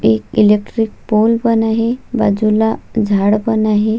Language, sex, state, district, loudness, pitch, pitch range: Marathi, female, Maharashtra, Solapur, -14 LUFS, 220 Hz, 210-225 Hz